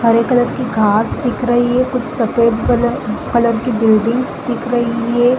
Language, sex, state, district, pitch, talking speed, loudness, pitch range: Hindi, female, Chhattisgarh, Balrampur, 240 Hz, 190 wpm, -15 LUFS, 230-245 Hz